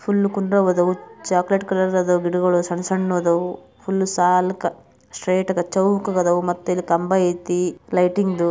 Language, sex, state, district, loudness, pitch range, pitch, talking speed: Kannada, male, Karnataka, Bijapur, -20 LUFS, 175-190 Hz, 180 Hz, 135 wpm